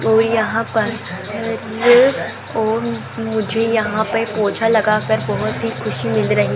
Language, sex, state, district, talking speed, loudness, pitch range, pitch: Hindi, female, Rajasthan, Jaipur, 135 wpm, -17 LUFS, 220-225 Hz, 225 Hz